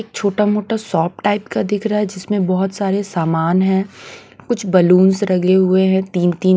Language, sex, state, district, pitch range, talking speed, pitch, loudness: Hindi, female, Bihar, West Champaran, 185-205 Hz, 180 wpm, 190 Hz, -16 LUFS